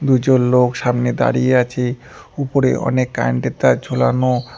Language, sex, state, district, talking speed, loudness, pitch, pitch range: Bengali, male, West Bengal, Alipurduar, 145 wpm, -17 LUFS, 125 Hz, 125-130 Hz